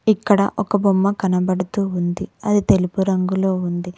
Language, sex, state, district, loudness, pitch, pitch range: Telugu, female, Telangana, Mahabubabad, -19 LUFS, 190 Hz, 185-200 Hz